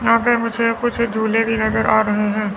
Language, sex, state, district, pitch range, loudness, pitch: Hindi, female, Chandigarh, Chandigarh, 220-235 Hz, -18 LUFS, 225 Hz